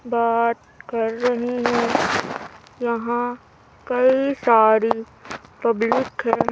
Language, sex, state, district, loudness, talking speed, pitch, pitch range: Hindi, female, Madhya Pradesh, Umaria, -21 LUFS, 85 wpm, 235 Hz, 230-245 Hz